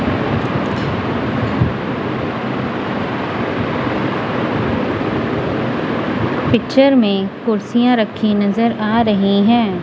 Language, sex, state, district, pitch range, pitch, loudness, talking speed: Hindi, female, Punjab, Kapurthala, 200-235 Hz, 220 Hz, -17 LUFS, 50 wpm